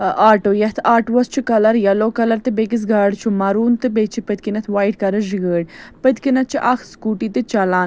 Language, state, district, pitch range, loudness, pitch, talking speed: Kashmiri, Punjab, Kapurthala, 205-235 Hz, -17 LUFS, 220 Hz, 165 wpm